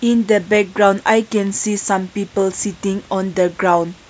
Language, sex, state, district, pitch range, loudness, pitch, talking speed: English, female, Nagaland, Kohima, 190-210 Hz, -17 LUFS, 200 Hz, 175 wpm